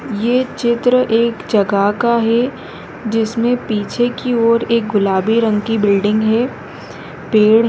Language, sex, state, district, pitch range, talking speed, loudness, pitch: Hindi, female, Rajasthan, Nagaur, 215-240 Hz, 140 wpm, -15 LUFS, 230 Hz